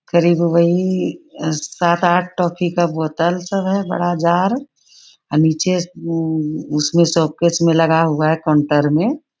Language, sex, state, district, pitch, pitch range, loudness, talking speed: Hindi, female, Bihar, Bhagalpur, 170 Hz, 160-175 Hz, -17 LUFS, 140 wpm